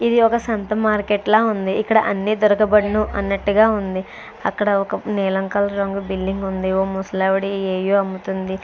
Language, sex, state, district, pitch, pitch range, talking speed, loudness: Telugu, female, Andhra Pradesh, Krishna, 200 Hz, 190-215 Hz, 165 wpm, -19 LUFS